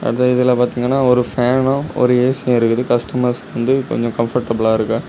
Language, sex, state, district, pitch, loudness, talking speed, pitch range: Tamil, male, Tamil Nadu, Kanyakumari, 125 Hz, -16 LUFS, 155 wpm, 120-125 Hz